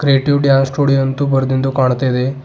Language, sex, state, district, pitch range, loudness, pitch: Kannada, male, Karnataka, Bidar, 130-140 Hz, -14 LUFS, 135 Hz